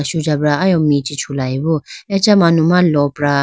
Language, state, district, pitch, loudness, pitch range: Idu Mishmi, Arunachal Pradesh, Lower Dibang Valley, 150 Hz, -15 LUFS, 145-170 Hz